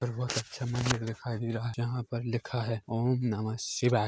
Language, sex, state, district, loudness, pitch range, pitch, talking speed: Hindi, male, Chhattisgarh, Korba, -32 LUFS, 115-125 Hz, 120 Hz, 235 wpm